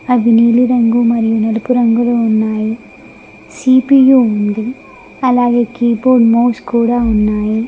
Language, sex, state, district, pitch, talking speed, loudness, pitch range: Telugu, female, Telangana, Mahabubabad, 235 Hz, 110 wpm, -12 LUFS, 225-245 Hz